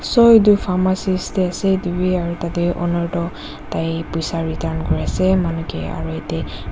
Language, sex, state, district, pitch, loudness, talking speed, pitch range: Nagamese, female, Nagaland, Dimapur, 170 Hz, -19 LUFS, 180 wpm, 160-185 Hz